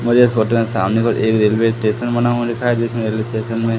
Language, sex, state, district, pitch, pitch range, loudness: Hindi, male, Madhya Pradesh, Katni, 115 Hz, 110-120 Hz, -17 LUFS